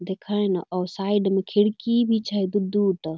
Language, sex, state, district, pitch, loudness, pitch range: Angika, female, Bihar, Bhagalpur, 200 Hz, -23 LUFS, 190-205 Hz